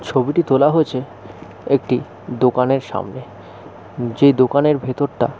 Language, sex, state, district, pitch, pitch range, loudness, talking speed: Bengali, male, West Bengal, Jalpaiguri, 130 Hz, 120-140 Hz, -17 LUFS, 135 wpm